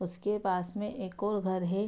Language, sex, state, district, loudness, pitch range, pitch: Hindi, female, Bihar, Madhepura, -33 LUFS, 185-210 Hz, 195 Hz